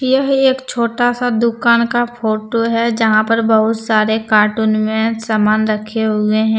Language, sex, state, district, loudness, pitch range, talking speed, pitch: Hindi, female, Jharkhand, Deoghar, -15 LUFS, 215-235 Hz, 165 wpm, 225 Hz